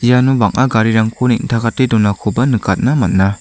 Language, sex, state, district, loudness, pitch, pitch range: Garo, male, Meghalaya, South Garo Hills, -14 LUFS, 115 Hz, 105-125 Hz